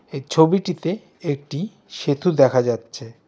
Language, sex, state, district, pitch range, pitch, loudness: Bengali, male, West Bengal, Darjeeling, 135-180 Hz, 160 Hz, -21 LUFS